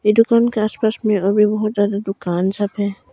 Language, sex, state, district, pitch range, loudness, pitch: Hindi, female, Arunachal Pradesh, Longding, 200-215 Hz, -18 LUFS, 210 Hz